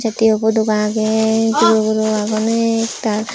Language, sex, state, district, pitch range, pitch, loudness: Chakma, female, Tripura, Unakoti, 215-225 Hz, 220 Hz, -16 LUFS